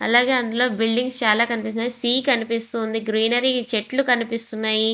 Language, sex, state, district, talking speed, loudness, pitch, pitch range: Telugu, female, Andhra Pradesh, Visakhapatnam, 160 wpm, -18 LUFS, 235 Hz, 225-245 Hz